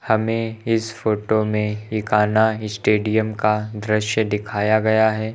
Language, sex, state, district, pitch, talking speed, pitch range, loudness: Hindi, male, Uttar Pradesh, Lucknow, 110 Hz, 125 wpm, 105-110 Hz, -20 LUFS